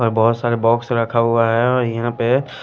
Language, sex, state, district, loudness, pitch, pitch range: Hindi, male, Punjab, Pathankot, -17 LUFS, 115 Hz, 115-120 Hz